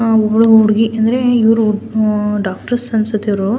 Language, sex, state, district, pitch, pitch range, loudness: Kannada, female, Karnataka, Mysore, 220 Hz, 215-225 Hz, -13 LUFS